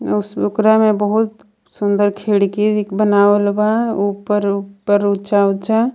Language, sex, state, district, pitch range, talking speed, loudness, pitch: Bhojpuri, female, Jharkhand, Palamu, 200-215 Hz, 100 wpm, -16 LUFS, 205 Hz